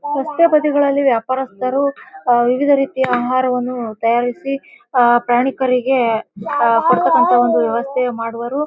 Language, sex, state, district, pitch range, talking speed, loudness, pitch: Kannada, female, Karnataka, Bijapur, 240-275 Hz, 110 wpm, -16 LUFS, 250 Hz